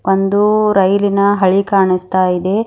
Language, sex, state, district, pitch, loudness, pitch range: Kannada, female, Karnataka, Bidar, 195 Hz, -13 LUFS, 190-205 Hz